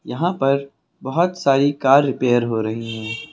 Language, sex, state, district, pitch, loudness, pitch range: Hindi, male, Uttar Pradesh, Lucknow, 135 Hz, -19 LUFS, 120-145 Hz